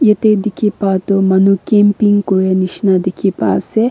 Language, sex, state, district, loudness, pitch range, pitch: Nagamese, female, Nagaland, Kohima, -13 LUFS, 190-210 Hz, 200 Hz